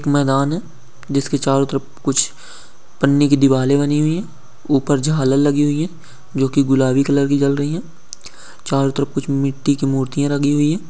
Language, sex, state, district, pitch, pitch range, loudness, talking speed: Hindi, male, West Bengal, Malda, 140 Hz, 135-145 Hz, -17 LUFS, 185 wpm